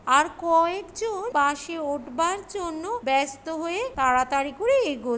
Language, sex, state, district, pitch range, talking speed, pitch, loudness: Bengali, female, West Bengal, Kolkata, 275-375 Hz, 125 wpm, 325 Hz, -25 LUFS